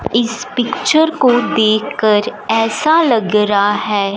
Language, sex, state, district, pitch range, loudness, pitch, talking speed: Hindi, female, Punjab, Fazilka, 210-250 Hz, -14 LUFS, 225 Hz, 115 wpm